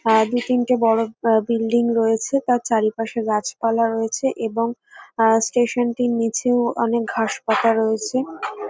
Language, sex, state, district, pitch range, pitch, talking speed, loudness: Bengali, female, West Bengal, North 24 Parganas, 225-245 Hz, 230 Hz, 140 wpm, -20 LUFS